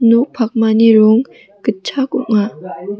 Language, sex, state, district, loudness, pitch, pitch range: Garo, female, Meghalaya, West Garo Hills, -14 LUFS, 225 Hz, 215-240 Hz